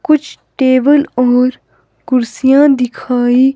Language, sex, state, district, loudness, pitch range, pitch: Hindi, female, Himachal Pradesh, Shimla, -12 LUFS, 250-280 Hz, 260 Hz